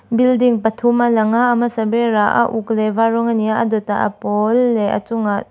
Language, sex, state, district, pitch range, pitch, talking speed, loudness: Mizo, female, Mizoram, Aizawl, 215-240 Hz, 225 Hz, 260 wpm, -16 LUFS